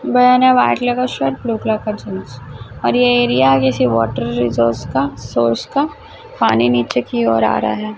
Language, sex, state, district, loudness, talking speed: Hindi, female, Chhattisgarh, Raipur, -15 LUFS, 180 wpm